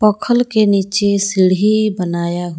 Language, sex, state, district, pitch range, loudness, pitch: Hindi, female, Jharkhand, Palamu, 185-215 Hz, -15 LUFS, 200 Hz